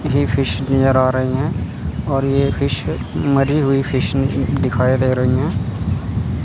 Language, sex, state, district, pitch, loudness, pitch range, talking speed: Hindi, male, Chandigarh, Chandigarh, 135 Hz, -18 LUFS, 125-135 Hz, 160 wpm